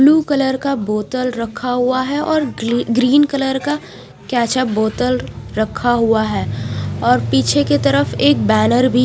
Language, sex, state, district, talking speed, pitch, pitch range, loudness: Hindi, female, Punjab, Fazilka, 160 wpm, 240 Hz, 210-260 Hz, -16 LUFS